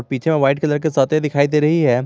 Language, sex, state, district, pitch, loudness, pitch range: Hindi, male, Jharkhand, Garhwa, 150 Hz, -17 LUFS, 135-155 Hz